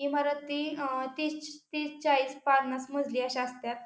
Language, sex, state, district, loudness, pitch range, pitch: Marathi, female, Maharashtra, Pune, -31 LUFS, 260-295 Hz, 280 Hz